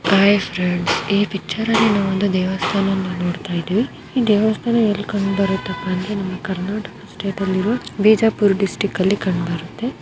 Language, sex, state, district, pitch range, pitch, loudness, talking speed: Kannada, female, Karnataka, Bijapur, 185-210 Hz, 195 Hz, -19 LUFS, 145 wpm